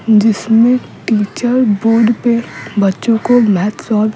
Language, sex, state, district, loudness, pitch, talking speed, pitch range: Hindi, female, Bihar, Patna, -13 LUFS, 225 Hz, 145 wpm, 210-235 Hz